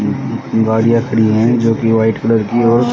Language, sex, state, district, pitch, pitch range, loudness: Hindi, male, Haryana, Rohtak, 115 Hz, 110-115 Hz, -13 LUFS